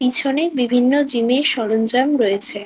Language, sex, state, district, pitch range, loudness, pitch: Bengali, female, West Bengal, Kolkata, 230-275 Hz, -16 LUFS, 250 Hz